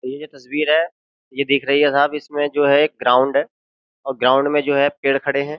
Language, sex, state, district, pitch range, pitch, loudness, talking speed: Hindi, male, Uttar Pradesh, Jyotiba Phule Nagar, 135-145 Hz, 140 Hz, -18 LUFS, 255 wpm